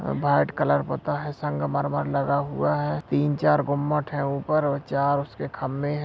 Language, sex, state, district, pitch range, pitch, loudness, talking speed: Hindi, male, Bihar, Bhagalpur, 135-145 Hz, 140 Hz, -25 LUFS, 180 wpm